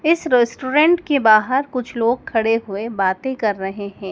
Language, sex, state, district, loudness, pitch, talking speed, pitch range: Hindi, male, Madhya Pradesh, Dhar, -18 LUFS, 235 Hz, 175 wpm, 210-265 Hz